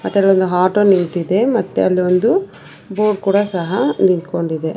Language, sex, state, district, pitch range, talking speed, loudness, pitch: Kannada, female, Karnataka, Bangalore, 180-205 Hz, 115 wpm, -15 LUFS, 190 Hz